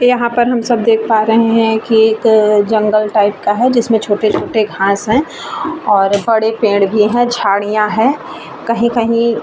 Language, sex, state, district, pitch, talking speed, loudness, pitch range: Hindi, female, Bihar, Vaishali, 220 Hz, 180 wpm, -13 LUFS, 210-235 Hz